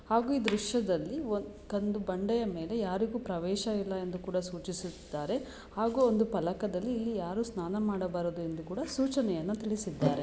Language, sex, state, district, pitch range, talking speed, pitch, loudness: Kannada, female, Karnataka, Shimoga, 180-225 Hz, 140 wpm, 205 Hz, -33 LUFS